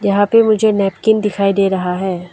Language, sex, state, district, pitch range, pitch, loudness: Hindi, female, Arunachal Pradesh, Lower Dibang Valley, 190-215 Hz, 200 Hz, -14 LUFS